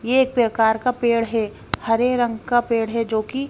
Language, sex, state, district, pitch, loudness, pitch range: Hindi, female, Punjab, Fazilka, 230 Hz, -20 LUFS, 225-245 Hz